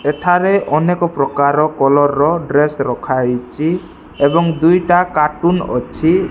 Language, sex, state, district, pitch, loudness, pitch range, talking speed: Odia, male, Odisha, Malkangiri, 155 Hz, -14 LUFS, 145-175 Hz, 115 wpm